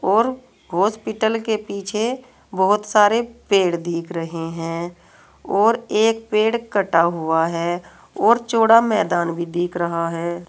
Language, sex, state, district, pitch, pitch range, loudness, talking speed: Hindi, female, Uttar Pradesh, Saharanpur, 200 Hz, 170-225 Hz, -20 LUFS, 130 wpm